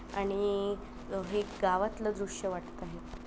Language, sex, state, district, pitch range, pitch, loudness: Marathi, female, Maharashtra, Pune, 185-205 Hz, 200 Hz, -34 LUFS